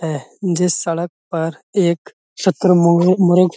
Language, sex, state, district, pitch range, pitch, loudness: Hindi, male, Uttar Pradesh, Budaun, 165-180 Hz, 175 Hz, -17 LUFS